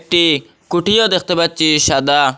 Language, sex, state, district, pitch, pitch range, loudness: Bengali, male, Assam, Hailakandi, 170 Hz, 150-175 Hz, -14 LUFS